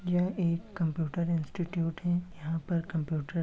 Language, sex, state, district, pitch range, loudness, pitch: Hindi, male, Uttar Pradesh, Etah, 165-175 Hz, -32 LUFS, 170 Hz